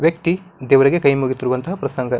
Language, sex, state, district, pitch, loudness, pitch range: Kannada, male, Karnataka, Bijapur, 140 Hz, -18 LUFS, 130-170 Hz